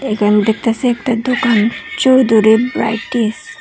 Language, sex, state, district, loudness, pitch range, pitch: Bengali, female, Tripura, Unakoti, -14 LUFS, 220-260 Hz, 230 Hz